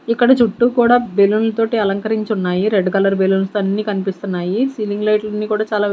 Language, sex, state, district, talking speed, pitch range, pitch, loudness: Telugu, female, Andhra Pradesh, Sri Satya Sai, 170 wpm, 195-225 Hz, 210 Hz, -16 LUFS